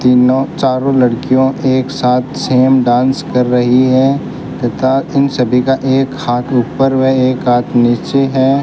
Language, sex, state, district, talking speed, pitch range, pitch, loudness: Hindi, male, Rajasthan, Bikaner, 155 wpm, 125-135 Hz, 130 Hz, -12 LUFS